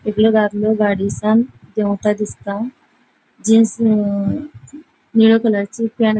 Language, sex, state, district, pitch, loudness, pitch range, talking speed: Konkani, female, Goa, North and South Goa, 215 Hz, -17 LUFS, 210-225 Hz, 95 wpm